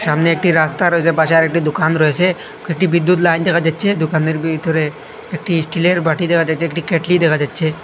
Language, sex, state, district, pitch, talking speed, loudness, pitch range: Bengali, male, Assam, Hailakandi, 165 Hz, 190 wpm, -15 LUFS, 160-175 Hz